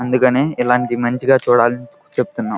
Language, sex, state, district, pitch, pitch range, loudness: Telugu, male, Andhra Pradesh, Krishna, 125 Hz, 120-125 Hz, -16 LUFS